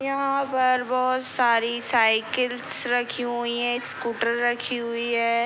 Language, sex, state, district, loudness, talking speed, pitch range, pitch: Hindi, female, Uttar Pradesh, Gorakhpur, -24 LUFS, 130 wpm, 235-255 Hz, 240 Hz